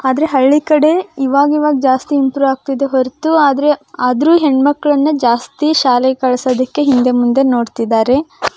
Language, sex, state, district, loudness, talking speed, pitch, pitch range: Kannada, female, Karnataka, Belgaum, -13 LUFS, 135 wpm, 270 Hz, 255-295 Hz